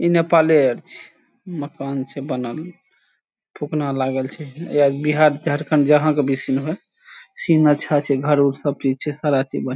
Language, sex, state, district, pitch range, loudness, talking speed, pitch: Maithili, male, Bihar, Saharsa, 140-160 Hz, -19 LUFS, 180 wpm, 150 Hz